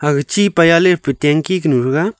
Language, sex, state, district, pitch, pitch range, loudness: Wancho, male, Arunachal Pradesh, Longding, 160 Hz, 145-185 Hz, -14 LUFS